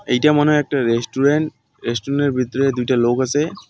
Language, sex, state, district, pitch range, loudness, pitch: Bengali, male, West Bengal, Alipurduar, 125-145 Hz, -18 LUFS, 135 Hz